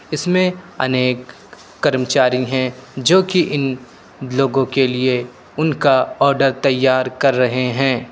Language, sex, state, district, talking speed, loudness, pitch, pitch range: Hindi, male, Uttar Pradesh, Lucknow, 120 wpm, -17 LUFS, 130 Hz, 130-140 Hz